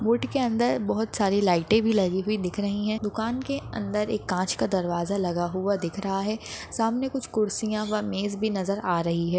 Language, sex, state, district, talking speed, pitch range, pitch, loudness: Hindi, female, Maharashtra, Aurangabad, 210 wpm, 190-220 Hz, 205 Hz, -26 LUFS